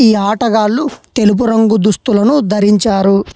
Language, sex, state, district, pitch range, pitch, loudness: Telugu, male, Telangana, Hyderabad, 205-230 Hz, 215 Hz, -12 LUFS